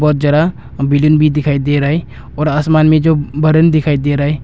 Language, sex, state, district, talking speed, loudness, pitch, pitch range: Hindi, male, Arunachal Pradesh, Longding, 230 wpm, -13 LUFS, 150 Hz, 145-155 Hz